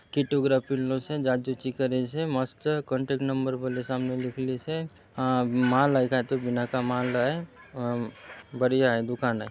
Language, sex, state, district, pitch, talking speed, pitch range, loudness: Halbi, male, Chhattisgarh, Bastar, 130 Hz, 150 wpm, 125-135 Hz, -27 LUFS